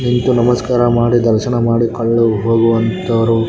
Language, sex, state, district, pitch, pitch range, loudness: Kannada, male, Karnataka, Raichur, 115 Hz, 115-120 Hz, -14 LUFS